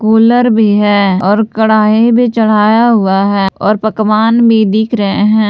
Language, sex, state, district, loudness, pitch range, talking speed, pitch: Hindi, female, Jharkhand, Palamu, -10 LUFS, 205-225 Hz, 165 wpm, 215 Hz